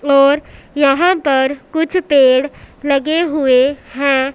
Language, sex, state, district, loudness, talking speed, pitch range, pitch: Hindi, male, Punjab, Pathankot, -14 LUFS, 110 wpm, 270-300 Hz, 280 Hz